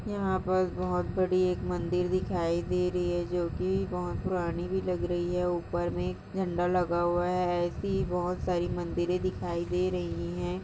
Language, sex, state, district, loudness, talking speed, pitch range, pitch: Hindi, female, Chhattisgarh, Balrampur, -30 LUFS, 185 wpm, 175-180 Hz, 175 Hz